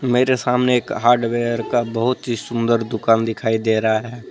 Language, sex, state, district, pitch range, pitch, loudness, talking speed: Hindi, male, Jharkhand, Deoghar, 115-125 Hz, 120 Hz, -19 LUFS, 180 wpm